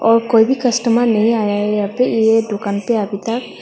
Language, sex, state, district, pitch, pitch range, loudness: Hindi, female, Tripura, West Tripura, 225 Hz, 210-235 Hz, -16 LUFS